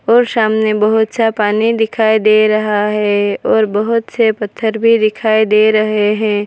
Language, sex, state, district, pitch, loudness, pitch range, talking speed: Hindi, female, Gujarat, Valsad, 215 Hz, -13 LUFS, 210-225 Hz, 165 wpm